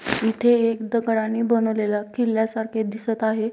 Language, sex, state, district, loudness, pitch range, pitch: Marathi, female, Maharashtra, Dhule, -22 LUFS, 220-230 Hz, 225 Hz